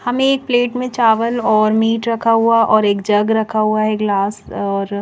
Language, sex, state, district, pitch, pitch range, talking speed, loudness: Hindi, female, Chandigarh, Chandigarh, 220 Hz, 210-235 Hz, 205 wpm, -15 LUFS